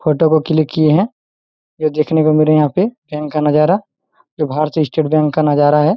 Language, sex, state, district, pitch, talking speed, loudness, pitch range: Hindi, male, Bihar, Araria, 155 Hz, 210 wpm, -15 LUFS, 150-160 Hz